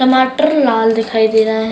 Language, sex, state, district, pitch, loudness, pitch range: Hindi, female, Uttarakhand, Uttarkashi, 225 Hz, -13 LUFS, 220-260 Hz